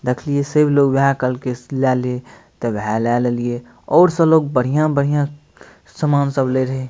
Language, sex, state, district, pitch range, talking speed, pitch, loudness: Maithili, male, Bihar, Madhepura, 125-145 Hz, 165 wpm, 135 Hz, -17 LUFS